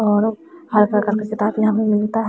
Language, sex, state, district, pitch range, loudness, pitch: Hindi, female, Bihar, West Champaran, 210-220 Hz, -18 LUFS, 215 Hz